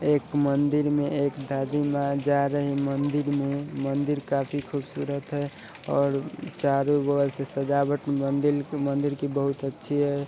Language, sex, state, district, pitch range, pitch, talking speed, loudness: Hindi, male, Bihar, Sitamarhi, 140-145 Hz, 140 Hz, 130 wpm, -26 LUFS